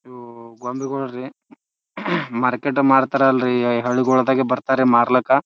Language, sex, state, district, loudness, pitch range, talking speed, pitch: Kannada, male, Karnataka, Bijapur, -18 LUFS, 125-135 Hz, 110 wpm, 130 Hz